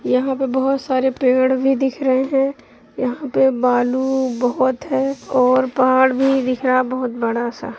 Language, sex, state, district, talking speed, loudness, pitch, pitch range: Hindi, female, Bihar, Begusarai, 160 wpm, -18 LUFS, 260 Hz, 255-265 Hz